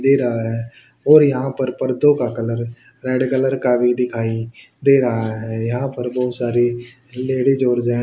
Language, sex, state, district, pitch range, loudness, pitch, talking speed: Hindi, male, Haryana, Rohtak, 120-130 Hz, -18 LUFS, 125 Hz, 185 wpm